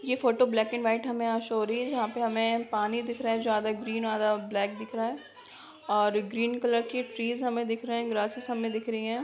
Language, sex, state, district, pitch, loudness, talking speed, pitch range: Hindi, female, Bihar, Begusarai, 230 Hz, -29 LUFS, 265 wpm, 220-240 Hz